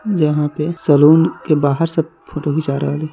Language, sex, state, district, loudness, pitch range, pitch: Hindi, male, Bihar, Muzaffarpur, -16 LUFS, 145-165 Hz, 155 Hz